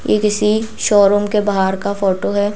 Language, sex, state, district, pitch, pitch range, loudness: Hindi, female, Madhya Pradesh, Bhopal, 205 Hz, 200-210 Hz, -15 LUFS